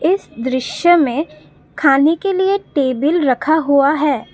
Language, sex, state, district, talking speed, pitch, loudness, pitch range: Hindi, female, Assam, Kamrup Metropolitan, 140 wpm, 300 Hz, -15 LUFS, 270-340 Hz